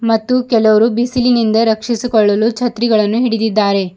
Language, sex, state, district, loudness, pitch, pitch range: Kannada, female, Karnataka, Bidar, -13 LUFS, 225 Hz, 215-240 Hz